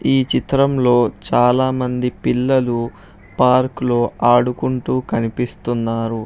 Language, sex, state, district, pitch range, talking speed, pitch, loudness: Telugu, male, Telangana, Hyderabad, 115-130 Hz, 75 wpm, 125 Hz, -17 LUFS